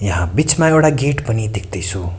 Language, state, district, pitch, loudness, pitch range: Nepali, West Bengal, Darjeeling, 110 Hz, -16 LUFS, 95-150 Hz